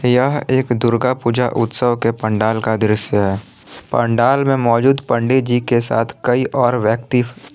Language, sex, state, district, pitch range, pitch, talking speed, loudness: Hindi, male, Jharkhand, Palamu, 115-125 Hz, 120 Hz, 160 wpm, -16 LUFS